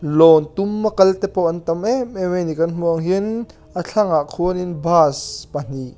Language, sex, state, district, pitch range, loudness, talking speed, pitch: Mizo, male, Mizoram, Aizawl, 160-195 Hz, -18 LUFS, 200 wpm, 175 Hz